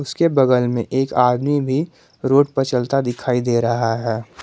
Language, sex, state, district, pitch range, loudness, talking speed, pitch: Hindi, male, Jharkhand, Garhwa, 120-140 Hz, -18 LUFS, 175 wpm, 125 Hz